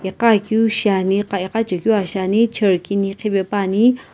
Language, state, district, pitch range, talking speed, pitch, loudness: Sumi, Nagaland, Kohima, 190-225 Hz, 175 wpm, 200 Hz, -18 LUFS